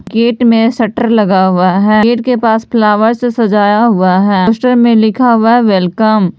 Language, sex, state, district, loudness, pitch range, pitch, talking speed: Hindi, female, Jharkhand, Palamu, -10 LUFS, 205-235 Hz, 225 Hz, 190 wpm